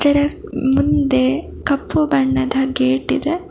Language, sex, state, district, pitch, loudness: Kannada, female, Karnataka, Bangalore, 265 Hz, -17 LUFS